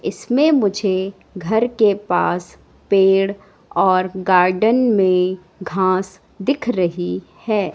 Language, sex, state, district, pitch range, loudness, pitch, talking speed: Hindi, female, Madhya Pradesh, Katni, 185-215 Hz, -18 LUFS, 190 Hz, 100 wpm